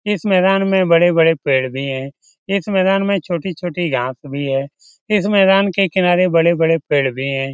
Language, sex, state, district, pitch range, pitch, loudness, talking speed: Hindi, male, Bihar, Lakhisarai, 140-195 Hz, 175 Hz, -16 LUFS, 175 wpm